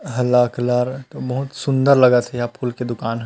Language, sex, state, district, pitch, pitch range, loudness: Chhattisgarhi, male, Chhattisgarh, Rajnandgaon, 125 Hz, 120-130 Hz, -19 LUFS